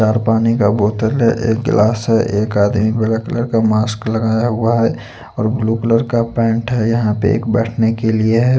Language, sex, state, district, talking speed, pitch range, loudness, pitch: Hindi, male, Chandigarh, Chandigarh, 210 wpm, 110-115 Hz, -15 LUFS, 115 Hz